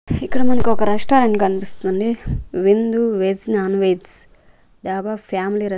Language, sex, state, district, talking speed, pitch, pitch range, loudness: Telugu, female, Andhra Pradesh, Manyam, 115 wpm, 205 Hz, 190-225 Hz, -19 LUFS